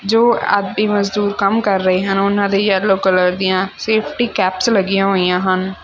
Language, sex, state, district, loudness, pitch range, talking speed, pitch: Punjabi, female, Punjab, Fazilka, -15 LUFS, 185-205 Hz, 175 wpm, 195 Hz